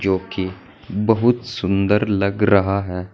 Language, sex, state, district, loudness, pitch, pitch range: Hindi, male, Uttar Pradesh, Saharanpur, -19 LUFS, 100 Hz, 95-105 Hz